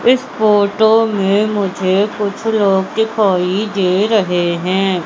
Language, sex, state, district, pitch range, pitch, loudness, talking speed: Hindi, female, Madhya Pradesh, Katni, 190-215 Hz, 200 Hz, -14 LUFS, 120 wpm